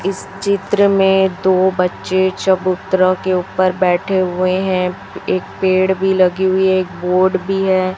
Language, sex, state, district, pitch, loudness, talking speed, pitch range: Hindi, female, Chhattisgarh, Raipur, 185 Hz, -15 LUFS, 160 wpm, 185-190 Hz